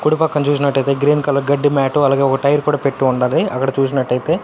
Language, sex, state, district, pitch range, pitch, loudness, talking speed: Telugu, male, Andhra Pradesh, Anantapur, 135-145 Hz, 140 Hz, -16 LUFS, 205 wpm